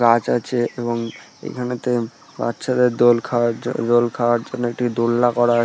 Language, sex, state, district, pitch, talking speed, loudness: Bengali, male, West Bengal, Purulia, 120 Hz, 170 wpm, -20 LUFS